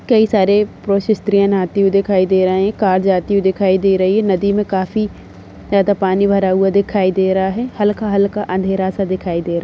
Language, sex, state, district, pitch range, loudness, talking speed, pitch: Hindi, female, Uttar Pradesh, Budaun, 190-205 Hz, -15 LUFS, 210 wpm, 195 Hz